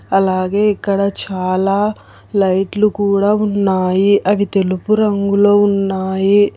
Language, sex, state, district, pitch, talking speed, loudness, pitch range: Telugu, female, Telangana, Hyderabad, 200 Hz, 90 wpm, -15 LUFS, 190-205 Hz